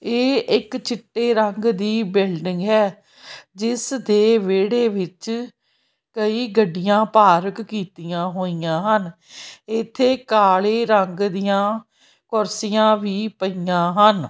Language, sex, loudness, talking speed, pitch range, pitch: Punjabi, female, -19 LUFS, 105 wpm, 190-225 Hz, 210 Hz